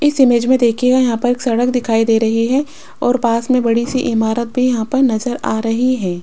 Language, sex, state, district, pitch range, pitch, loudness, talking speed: Hindi, female, Rajasthan, Jaipur, 230-255 Hz, 245 Hz, -15 LUFS, 240 wpm